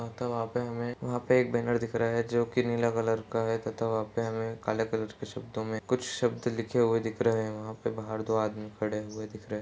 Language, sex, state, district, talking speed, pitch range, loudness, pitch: Hindi, male, Uttar Pradesh, Jalaun, 260 wpm, 110-120 Hz, -31 LUFS, 115 Hz